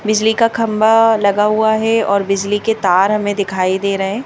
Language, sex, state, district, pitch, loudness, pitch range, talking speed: Hindi, male, Madhya Pradesh, Bhopal, 210 Hz, -14 LUFS, 200-220 Hz, 195 wpm